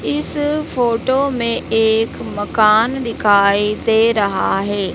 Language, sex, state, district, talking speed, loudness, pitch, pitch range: Hindi, female, Madhya Pradesh, Dhar, 110 wpm, -16 LUFS, 220 Hz, 205-235 Hz